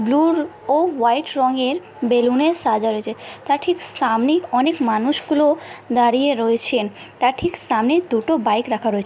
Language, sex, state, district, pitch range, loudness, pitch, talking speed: Bengali, female, West Bengal, Dakshin Dinajpur, 230-305 Hz, -19 LUFS, 255 Hz, 160 wpm